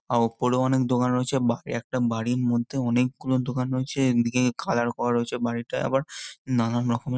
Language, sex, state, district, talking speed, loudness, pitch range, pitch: Bengali, male, West Bengal, Jhargram, 160 wpm, -25 LUFS, 120-130 Hz, 125 Hz